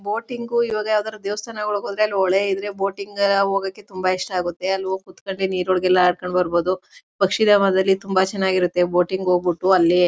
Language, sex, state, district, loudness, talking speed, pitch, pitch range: Kannada, female, Karnataka, Mysore, -20 LUFS, 165 wpm, 190 Hz, 185-205 Hz